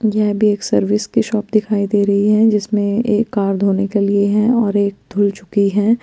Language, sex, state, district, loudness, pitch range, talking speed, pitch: Hindi, female, Chandigarh, Chandigarh, -16 LUFS, 200-215 Hz, 220 wpm, 205 Hz